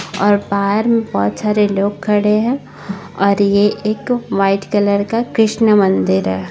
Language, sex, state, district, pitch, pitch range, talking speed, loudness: Hindi, female, Bihar, Gopalganj, 205 Hz, 195-215 Hz, 155 wpm, -15 LUFS